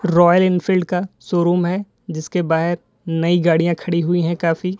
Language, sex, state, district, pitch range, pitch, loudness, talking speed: Hindi, male, Uttar Pradesh, Lalitpur, 170-180 Hz, 175 Hz, -18 LUFS, 160 wpm